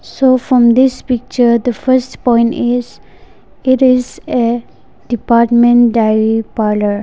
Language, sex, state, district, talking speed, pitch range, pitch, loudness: English, female, Nagaland, Dimapur, 120 wpm, 230-255 Hz, 240 Hz, -12 LUFS